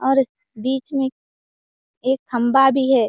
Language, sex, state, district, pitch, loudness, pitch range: Hindi, female, Bihar, Kishanganj, 265 Hz, -20 LUFS, 245-270 Hz